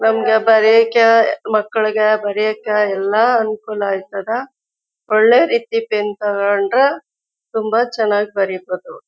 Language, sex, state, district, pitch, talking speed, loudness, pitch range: Kannada, female, Karnataka, Chamarajanagar, 215 Hz, 90 wpm, -16 LUFS, 205-230 Hz